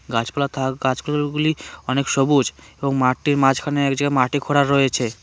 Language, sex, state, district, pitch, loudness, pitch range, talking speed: Bengali, male, West Bengal, Cooch Behar, 140 Hz, -20 LUFS, 130-145 Hz, 150 wpm